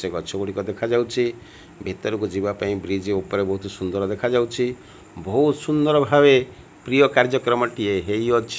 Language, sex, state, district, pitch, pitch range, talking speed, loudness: Odia, male, Odisha, Malkangiri, 115 Hz, 100-125 Hz, 135 wpm, -21 LUFS